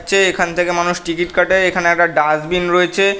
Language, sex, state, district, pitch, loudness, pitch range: Bengali, male, West Bengal, North 24 Parganas, 175 Hz, -15 LUFS, 170-180 Hz